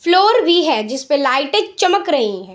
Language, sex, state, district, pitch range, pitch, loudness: Hindi, female, Bihar, Saharsa, 265-390 Hz, 340 Hz, -15 LUFS